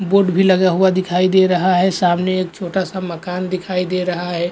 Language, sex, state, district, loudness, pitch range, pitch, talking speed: Hindi, male, Goa, North and South Goa, -17 LUFS, 180-185 Hz, 185 Hz, 225 wpm